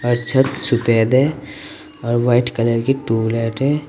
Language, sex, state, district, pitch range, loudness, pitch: Hindi, male, Uttar Pradesh, Saharanpur, 115-135 Hz, -17 LUFS, 120 Hz